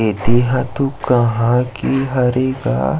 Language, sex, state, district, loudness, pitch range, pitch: Chhattisgarhi, male, Chhattisgarh, Sarguja, -17 LUFS, 120-130 Hz, 125 Hz